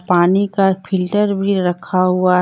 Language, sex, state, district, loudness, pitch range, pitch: Hindi, female, Jharkhand, Deoghar, -16 LUFS, 180-195 Hz, 185 Hz